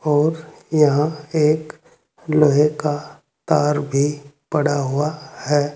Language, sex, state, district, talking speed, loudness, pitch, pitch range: Hindi, male, Uttar Pradesh, Saharanpur, 105 wpm, -19 LUFS, 150 Hz, 145-155 Hz